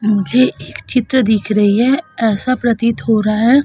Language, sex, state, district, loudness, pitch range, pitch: Hindi, female, Uttar Pradesh, Budaun, -14 LUFS, 215-255 Hz, 230 Hz